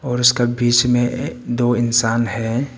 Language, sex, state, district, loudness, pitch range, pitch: Hindi, male, Arunachal Pradesh, Papum Pare, -17 LUFS, 120-125 Hz, 120 Hz